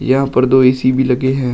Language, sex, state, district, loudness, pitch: Hindi, male, Uttar Pradesh, Shamli, -13 LUFS, 130 Hz